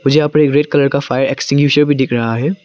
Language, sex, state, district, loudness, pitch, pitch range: Hindi, male, Arunachal Pradesh, Papum Pare, -13 LUFS, 140 Hz, 135-150 Hz